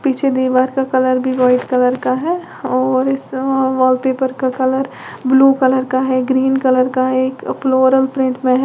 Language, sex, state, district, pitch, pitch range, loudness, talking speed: Hindi, female, Uttar Pradesh, Lalitpur, 260 Hz, 255-265 Hz, -15 LUFS, 195 wpm